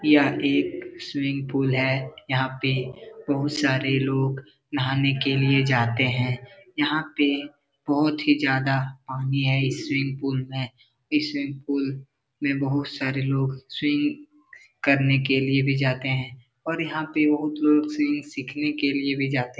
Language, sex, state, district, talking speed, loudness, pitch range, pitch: Hindi, male, Bihar, Darbhanga, 160 wpm, -24 LUFS, 135-150 Hz, 140 Hz